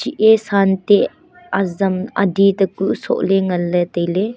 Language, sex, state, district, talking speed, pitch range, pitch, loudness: Wancho, female, Arunachal Pradesh, Longding, 110 wpm, 190-215 Hz, 195 Hz, -17 LUFS